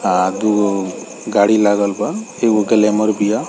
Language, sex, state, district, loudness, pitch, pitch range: Bhojpuri, male, Bihar, East Champaran, -16 LUFS, 105 Hz, 105-110 Hz